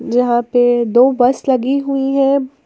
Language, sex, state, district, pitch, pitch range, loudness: Hindi, female, Jharkhand, Ranchi, 255 Hz, 245-275 Hz, -14 LUFS